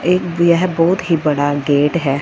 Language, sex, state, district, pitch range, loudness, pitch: Hindi, female, Punjab, Fazilka, 145-175 Hz, -15 LUFS, 165 Hz